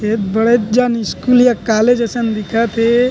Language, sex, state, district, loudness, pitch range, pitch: Chhattisgarhi, male, Chhattisgarh, Rajnandgaon, -14 LUFS, 220-240 Hz, 230 Hz